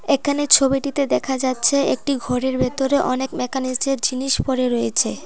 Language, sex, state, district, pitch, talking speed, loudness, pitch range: Bengali, female, Tripura, Dhalai, 265 Hz, 135 wpm, -19 LUFS, 255-280 Hz